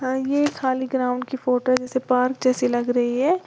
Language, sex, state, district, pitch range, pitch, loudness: Hindi, female, Uttar Pradesh, Lalitpur, 250-265 Hz, 255 Hz, -22 LUFS